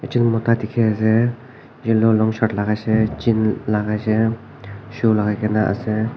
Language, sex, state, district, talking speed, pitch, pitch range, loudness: Nagamese, male, Nagaland, Kohima, 155 wpm, 110 Hz, 110-115 Hz, -19 LUFS